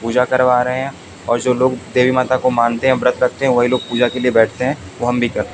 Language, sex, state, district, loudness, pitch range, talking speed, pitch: Hindi, male, Haryana, Jhajjar, -16 LUFS, 120-130 Hz, 280 wpm, 125 Hz